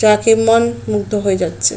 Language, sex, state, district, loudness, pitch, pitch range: Bengali, female, West Bengal, Jalpaiguri, -15 LUFS, 215 Hz, 205-225 Hz